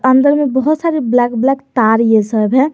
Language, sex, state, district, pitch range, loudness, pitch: Hindi, male, Jharkhand, Garhwa, 230-285 Hz, -13 LUFS, 260 Hz